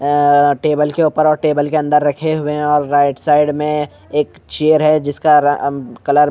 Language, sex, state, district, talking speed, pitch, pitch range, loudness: Hindi, male, Bihar, Katihar, 210 wpm, 150 Hz, 145-150 Hz, -14 LUFS